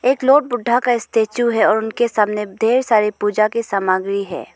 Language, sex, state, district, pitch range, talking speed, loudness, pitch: Hindi, female, Arunachal Pradesh, Lower Dibang Valley, 210-240 Hz, 195 wpm, -17 LUFS, 220 Hz